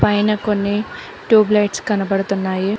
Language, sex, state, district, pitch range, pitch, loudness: Telugu, female, Telangana, Mahabubabad, 195-215 Hz, 210 Hz, -17 LUFS